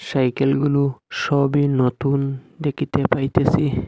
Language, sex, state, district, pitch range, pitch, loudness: Bengali, male, Assam, Hailakandi, 135-145 Hz, 140 Hz, -20 LUFS